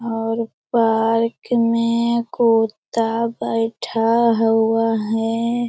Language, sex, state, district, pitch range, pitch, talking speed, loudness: Hindi, female, Bihar, Lakhisarai, 225-235 Hz, 230 Hz, 75 wpm, -19 LUFS